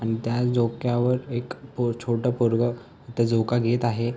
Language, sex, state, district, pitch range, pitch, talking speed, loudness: Marathi, male, Maharashtra, Sindhudurg, 115-125 Hz, 120 Hz, 160 wpm, -24 LUFS